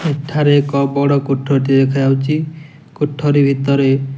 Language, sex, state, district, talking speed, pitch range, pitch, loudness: Odia, male, Odisha, Nuapada, 130 wpm, 135-145 Hz, 140 Hz, -15 LUFS